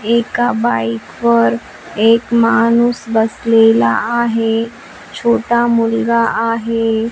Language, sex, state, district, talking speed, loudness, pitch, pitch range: Marathi, female, Maharashtra, Washim, 85 wpm, -14 LUFS, 230 Hz, 225-235 Hz